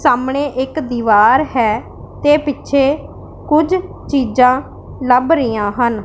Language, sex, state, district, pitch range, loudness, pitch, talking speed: Punjabi, female, Punjab, Pathankot, 240-290 Hz, -15 LUFS, 265 Hz, 110 wpm